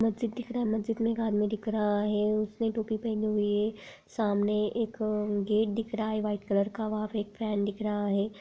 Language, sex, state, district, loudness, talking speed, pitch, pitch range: Hindi, female, Bihar, Darbhanga, -30 LUFS, 230 wpm, 215 Hz, 210-220 Hz